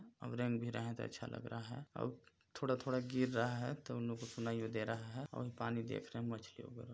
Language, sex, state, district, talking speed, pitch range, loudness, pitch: Hindi, male, Chhattisgarh, Balrampur, 260 wpm, 115-125 Hz, -43 LUFS, 120 Hz